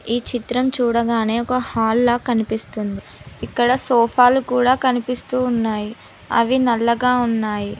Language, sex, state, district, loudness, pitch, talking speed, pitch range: Telugu, female, Telangana, Mahabubabad, -18 LUFS, 240 Hz, 115 wpm, 225-250 Hz